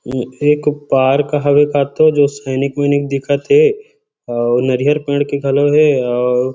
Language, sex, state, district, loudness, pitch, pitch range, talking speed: Chhattisgarhi, male, Chhattisgarh, Rajnandgaon, -14 LUFS, 140 Hz, 130-150 Hz, 155 wpm